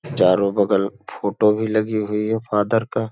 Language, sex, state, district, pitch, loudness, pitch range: Hindi, male, Bihar, Sitamarhi, 105 Hz, -20 LUFS, 100-110 Hz